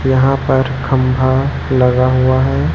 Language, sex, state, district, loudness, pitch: Hindi, male, Chhattisgarh, Raipur, -14 LUFS, 130 Hz